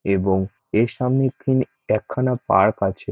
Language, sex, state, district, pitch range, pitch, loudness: Bengali, male, West Bengal, North 24 Parganas, 100-130 Hz, 110 Hz, -21 LUFS